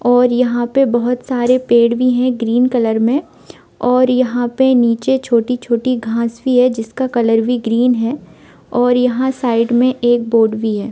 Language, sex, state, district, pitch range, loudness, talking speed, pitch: Hindi, female, Bihar, Sitamarhi, 235-255 Hz, -15 LUFS, 175 wpm, 245 Hz